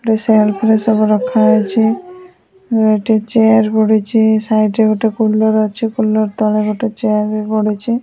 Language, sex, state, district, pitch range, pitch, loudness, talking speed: Odia, female, Odisha, Sambalpur, 215-225 Hz, 220 Hz, -13 LUFS, 150 wpm